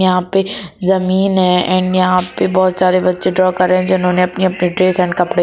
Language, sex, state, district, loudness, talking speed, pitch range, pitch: Hindi, female, Jharkhand, Jamtara, -14 LUFS, 210 wpm, 180-185 Hz, 185 Hz